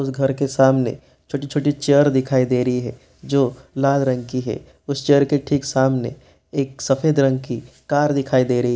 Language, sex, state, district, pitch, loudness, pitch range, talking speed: Hindi, male, Bihar, East Champaran, 135 Hz, -19 LUFS, 130-140 Hz, 200 wpm